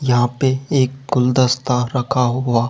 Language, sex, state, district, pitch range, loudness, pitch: Hindi, male, Rajasthan, Jaipur, 125-130 Hz, -17 LUFS, 125 Hz